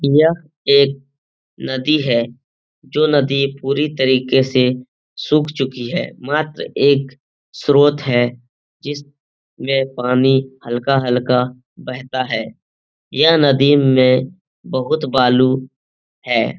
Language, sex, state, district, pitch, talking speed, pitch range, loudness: Hindi, male, Bihar, Jamui, 135 Hz, 105 wpm, 125-145 Hz, -16 LUFS